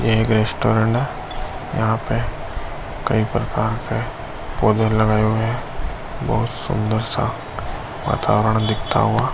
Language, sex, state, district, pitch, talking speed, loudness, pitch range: Hindi, male, Uttar Pradesh, Gorakhpur, 110 Hz, 130 wpm, -21 LUFS, 110-115 Hz